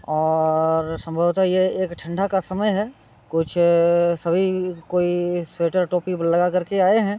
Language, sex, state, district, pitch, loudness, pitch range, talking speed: Hindi, male, Bihar, Muzaffarpur, 175 Hz, -21 LUFS, 165-185 Hz, 150 wpm